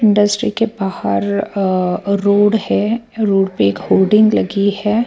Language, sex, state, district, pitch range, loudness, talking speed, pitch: Hindi, female, Bihar, Patna, 195-215 Hz, -15 LUFS, 140 wpm, 200 Hz